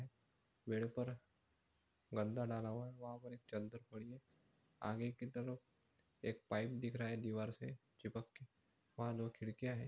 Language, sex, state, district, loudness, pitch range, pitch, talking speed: Hindi, male, Maharashtra, Nagpur, -47 LUFS, 110-125 Hz, 115 Hz, 165 wpm